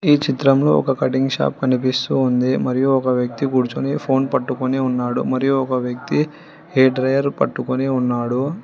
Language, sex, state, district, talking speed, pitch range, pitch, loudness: Telugu, female, Telangana, Hyderabad, 145 wpm, 130-135 Hz, 130 Hz, -19 LUFS